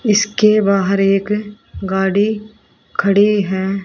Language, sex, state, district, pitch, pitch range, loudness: Hindi, female, Haryana, Rohtak, 205 Hz, 195-210 Hz, -15 LUFS